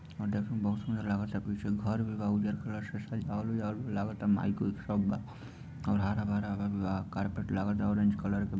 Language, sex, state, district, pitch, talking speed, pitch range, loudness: Bhojpuri, male, Bihar, Sitamarhi, 105 Hz, 180 wpm, 100-110 Hz, -33 LUFS